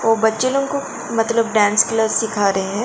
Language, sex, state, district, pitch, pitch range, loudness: Hindi, female, Goa, North and South Goa, 225 Hz, 215-230 Hz, -17 LUFS